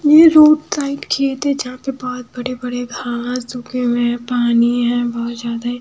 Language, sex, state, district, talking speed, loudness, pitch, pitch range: Hindi, female, Haryana, Jhajjar, 175 wpm, -17 LUFS, 250 Hz, 240-270 Hz